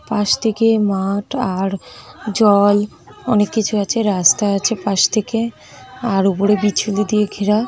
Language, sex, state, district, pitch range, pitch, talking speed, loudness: Bengali, female, West Bengal, North 24 Parganas, 200-220 Hz, 205 Hz, 135 wpm, -17 LUFS